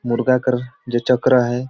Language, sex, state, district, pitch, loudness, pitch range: Sadri, male, Chhattisgarh, Jashpur, 125 Hz, -18 LUFS, 120-130 Hz